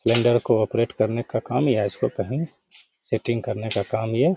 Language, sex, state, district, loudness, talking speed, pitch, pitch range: Hindi, male, Bihar, Gaya, -23 LUFS, 190 wpm, 115 Hz, 110-125 Hz